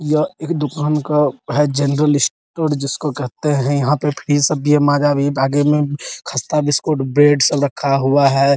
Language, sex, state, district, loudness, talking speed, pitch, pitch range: Hindi, male, Bihar, Araria, -16 LUFS, 205 wpm, 145 Hz, 140-150 Hz